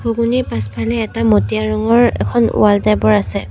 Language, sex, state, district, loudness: Assamese, female, Assam, Sonitpur, -15 LUFS